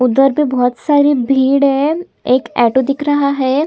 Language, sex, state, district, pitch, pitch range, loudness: Hindi, female, Chhattisgarh, Sukma, 275 Hz, 260-290 Hz, -14 LUFS